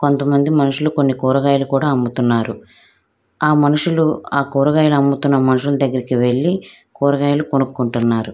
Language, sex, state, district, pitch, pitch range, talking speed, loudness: Telugu, female, Andhra Pradesh, Krishna, 140 Hz, 130-145 Hz, 120 wpm, -16 LUFS